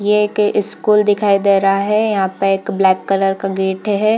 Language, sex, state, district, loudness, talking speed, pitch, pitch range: Hindi, female, Bihar, Purnia, -15 LUFS, 230 wpm, 200 Hz, 195-210 Hz